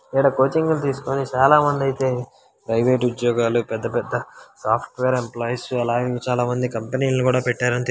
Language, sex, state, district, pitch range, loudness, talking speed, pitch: Telugu, male, Telangana, Karimnagar, 120-135 Hz, -21 LUFS, 150 wpm, 125 Hz